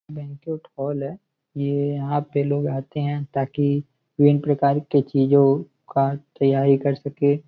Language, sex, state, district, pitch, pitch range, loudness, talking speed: Hindi, male, Uttar Pradesh, Gorakhpur, 140 Hz, 140-145 Hz, -22 LUFS, 145 wpm